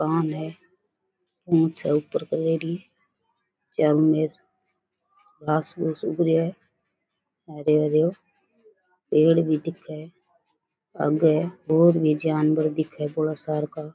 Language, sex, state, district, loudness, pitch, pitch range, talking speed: Rajasthani, female, Rajasthan, Churu, -23 LUFS, 160 Hz, 155-175 Hz, 115 wpm